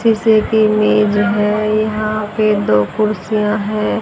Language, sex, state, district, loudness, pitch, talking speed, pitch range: Hindi, female, Haryana, Charkhi Dadri, -15 LUFS, 215 Hz, 135 wpm, 210-215 Hz